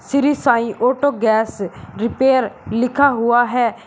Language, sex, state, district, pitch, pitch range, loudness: Hindi, male, Uttar Pradesh, Shamli, 240 Hz, 230-265 Hz, -17 LUFS